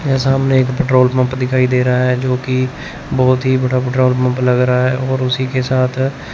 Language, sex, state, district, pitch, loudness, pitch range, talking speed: Hindi, male, Chandigarh, Chandigarh, 130 Hz, -15 LUFS, 125-130 Hz, 220 wpm